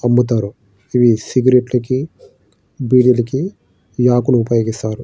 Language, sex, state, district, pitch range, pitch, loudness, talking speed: Telugu, male, Andhra Pradesh, Srikakulam, 110-125 Hz, 120 Hz, -15 LUFS, 95 wpm